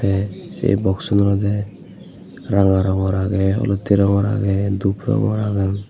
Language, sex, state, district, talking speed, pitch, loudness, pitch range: Chakma, male, Tripura, Unakoti, 130 wpm, 100 Hz, -19 LUFS, 95-100 Hz